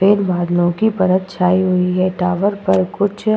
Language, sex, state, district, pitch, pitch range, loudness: Hindi, female, Uttar Pradesh, Budaun, 185 Hz, 180-200 Hz, -16 LUFS